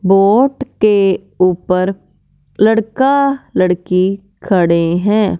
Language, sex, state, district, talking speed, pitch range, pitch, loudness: Hindi, male, Punjab, Fazilka, 80 wpm, 185-220 Hz, 195 Hz, -14 LUFS